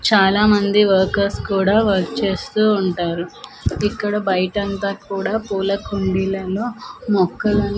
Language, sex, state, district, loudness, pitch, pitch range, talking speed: Telugu, female, Andhra Pradesh, Manyam, -19 LUFS, 200 Hz, 190-210 Hz, 100 wpm